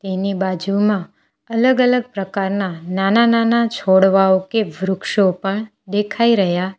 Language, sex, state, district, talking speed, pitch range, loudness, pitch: Gujarati, female, Gujarat, Valsad, 125 wpm, 190-225 Hz, -17 LUFS, 195 Hz